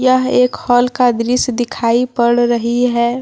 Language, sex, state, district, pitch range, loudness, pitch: Hindi, female, Jharkhand, Deoghar, 235-250 Hz, -14 LUFS, 245 Hz